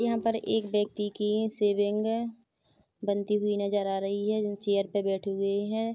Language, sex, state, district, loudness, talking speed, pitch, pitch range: Hindi, female, Chhattisgarh, Rajnandgaon, -29 LUFS, 180 wpm, 210 Hz, 200-220 Hz